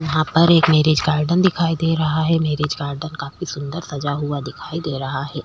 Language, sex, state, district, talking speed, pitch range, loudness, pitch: Hindi, female, Chhattisgarh, Korba, 210 wpm, 145-165 Hz, -19 LUFS, 155 Hz